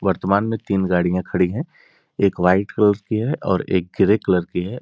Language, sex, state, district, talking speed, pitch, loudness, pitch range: Hindi, male, Uttar Pradesh, Gorakhpur, 210 wpm, 100 Hz, -20 LUFS, 90-110 Hz